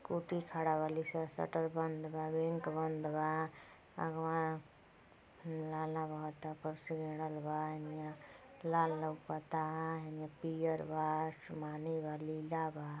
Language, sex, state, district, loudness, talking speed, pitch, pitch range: Hindi, female, Uttar Pradesh, Deoria, -40 LUFS, 120 wpm, 155 Hz, 155-160 Hz